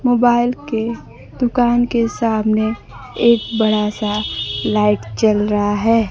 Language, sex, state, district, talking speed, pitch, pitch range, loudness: Hindi, female, Bihar, Kaimur, 120 wpm, 225 Hz, 210-240 Hz, -17 LUFS